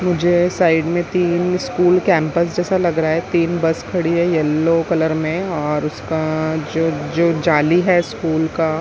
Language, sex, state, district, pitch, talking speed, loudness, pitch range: Hindi, female, Maharashtra, Mumbai Suburban, 170 Hz, 170 wpm, -17 LUFS, 160-175 Hz